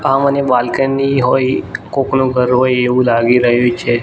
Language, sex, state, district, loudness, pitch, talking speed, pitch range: Gujarati, male, Gujarat, Gandhinagar, -13 LUFS, 125 Hz, 165 wpm, 120-135 Hz